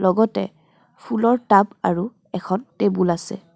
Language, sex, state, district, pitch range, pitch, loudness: Assamese, female, Assam, Kamrup Metropolitan, 185-220 Hz, 200 Hz, -21 LUFS